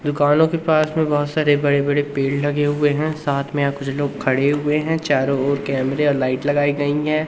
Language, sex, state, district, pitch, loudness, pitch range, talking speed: Hindi, male, Madhya Pradesh, Umaria, 145 Hz, -19 LUFS, 140-150 Hz, 230 wpm